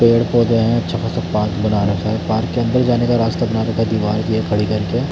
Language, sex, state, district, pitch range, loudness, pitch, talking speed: Hindi, male, Chandigarh, Chandigarh, 105-115 Hz, -17 LUFS, 110 Hz, 245 wpm